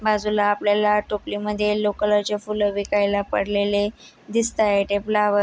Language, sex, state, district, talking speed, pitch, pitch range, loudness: Marathi, female, Maharashtra, Dhule, 155 wpm, 210 Hz, 205-210 Hz, -22 LUFS